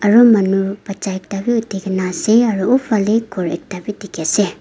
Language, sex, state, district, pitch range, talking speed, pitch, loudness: Nagamese, female, Nagaland, Dimapur, 190-220 Hz, 195 wpm, 200 Hz, -17 LUFS